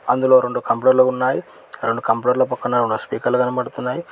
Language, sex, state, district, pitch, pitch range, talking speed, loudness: Telugu, male, Telangana, Mahabubabad, 125 Hz, 125-130 Hz, 145 wpm, -19 LUFS